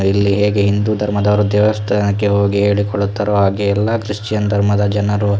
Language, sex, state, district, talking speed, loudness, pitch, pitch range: Kannada, male, Karnataka, Shimoga, 155 wpm, -15 LUFS, 105 Hz, 100-105 Hz